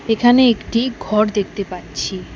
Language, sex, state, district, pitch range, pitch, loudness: Bengali, female, West Bengal, Alipurduar, 200-240 Hz, 215 Hz, -17 LUFS